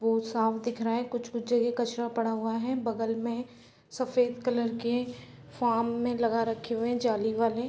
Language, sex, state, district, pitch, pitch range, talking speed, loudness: Hindi, female, Bihar, Sitamarhi, 235 Hz, 225-240 Hz, 205 wpm, -30 LUFS